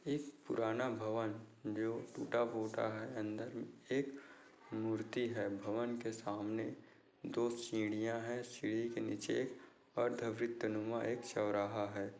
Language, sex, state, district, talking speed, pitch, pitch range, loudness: Hindi, male, Maharashtra, Nagpur, 110 wpm, 110 Hz, 110-120 Hz, -41 LUFS